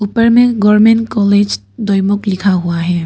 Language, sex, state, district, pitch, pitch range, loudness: Hindi, female, Arunachal Pradesh, Papum Pare, 205 Hz, 190-220 Hz, -12 LUFS